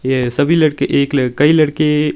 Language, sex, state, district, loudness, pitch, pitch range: Hindi, male, Himachal Pradesh, Shimla, -14 LUFS, 150 Hz, 135-155 Hz